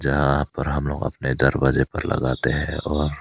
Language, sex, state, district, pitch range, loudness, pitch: Hindi, male, Arunachal Pradesh, Papum Pare, 65-75 Hz, -22 LUFS, 70 Hz